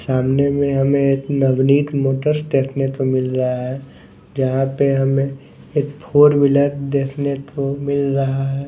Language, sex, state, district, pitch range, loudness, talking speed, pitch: Hindi, male, Maharashtra, Mumbai Suburban, 135-140 Hz, -18 LUFS, 150 wpm, 140 Hz